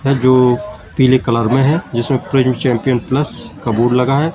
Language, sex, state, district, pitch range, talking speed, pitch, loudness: Hindi, male, Madhya Pradesh, Katni, 120-135 Hz, 180 wpm, 130 Hz, -14 LUFS